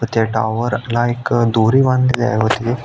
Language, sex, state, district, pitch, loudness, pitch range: Marathi, male, Maharashtra, Aurangabad, 120 Hz, -16 LUFS, 110-120 Hz